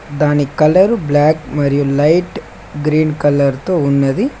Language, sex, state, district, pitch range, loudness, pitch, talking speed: Telugu, male, Telangana, Mahabubabad, 145-155 Hz, -14 LUFS, 145 Hz, 120 wpm